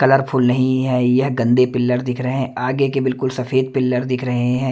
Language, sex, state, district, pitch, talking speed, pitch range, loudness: Hindi, male, Bihar, Katihar, 130 Hz, 215 wpm, 125-130 Hz, -18 LUFS